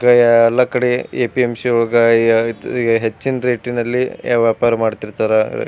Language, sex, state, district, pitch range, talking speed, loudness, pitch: Kannada, male, Karnataka, Bijapur, 115-125 Hz, 125 wpm, -16 LUFS, 120 Hz